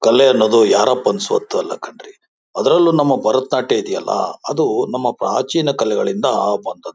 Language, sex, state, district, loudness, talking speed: Kannada, male, Karnataka, Bijapur, -16 LUFS, 130 wpm